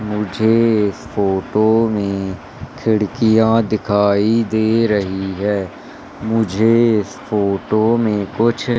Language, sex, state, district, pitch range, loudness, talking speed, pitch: Hindi, male, Madhya Pradesh, Katni, 100-115 Hz, -16 LUFS, 95 wpm, 110 Hz